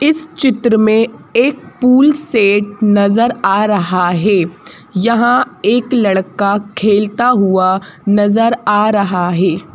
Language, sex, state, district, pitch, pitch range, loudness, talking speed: Hindi, female, Madhya Pradesh, Bhopal, 210 Hz, 195-235 Hz, -13 LUFS, 115 wpm